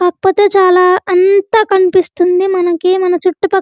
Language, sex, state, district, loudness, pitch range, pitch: Telugu, female, Andhra Pradesh, Guntur, -11 LUFS, 360-390 Hz, 370 Hz